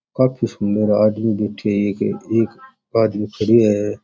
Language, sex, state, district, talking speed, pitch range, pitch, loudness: Rajasthani, male, Rajasthan, Churu, 150 wpm, 105-115 Hz, 105 Hz, -18 LUFS